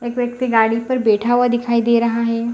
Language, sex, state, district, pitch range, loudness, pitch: Hindi, female, Bihar, Gaya, 230-245 Hz, -17 LUFS, 235 Hz